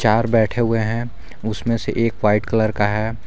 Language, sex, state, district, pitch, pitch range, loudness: Hindi, male, Jharkhand, Garhwa, 110 Hz, 105-115 Hz, -20 LUFS